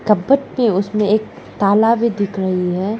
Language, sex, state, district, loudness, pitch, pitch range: Hindi, female, Arunachal Pradesh, Lower Dibang Valley, -16 LUFS, 210 Hz, 195-225 Hz